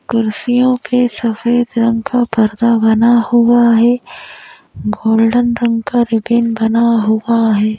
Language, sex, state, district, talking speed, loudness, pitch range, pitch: Hindi, female, Madhya Pradesh, Bhopal, 125 wpm, -13 LUFS, 225-240 Hz, 235 Hz